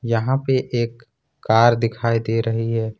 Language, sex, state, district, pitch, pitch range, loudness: Hindi, male, Jharkhand, Ranchi, 115 Hz, 115-120 Hz, -20 LUFS